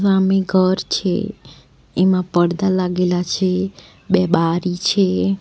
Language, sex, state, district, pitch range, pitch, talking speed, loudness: Gujarati, female, Gujarat, Valsad, 180-190 Hz, 185 Hz, 110 wpm, -18 LUFS